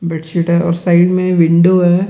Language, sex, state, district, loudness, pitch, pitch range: Hindi, male, Bihar, Gaya, -12 LUFS, 175 Hz, 170-180 Hz